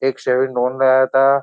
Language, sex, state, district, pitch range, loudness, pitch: Hindi, male, Uttar Pradesh, Jyotiba Phule Nagar, 125-135 Hz, -16 LUFS, 130 Hz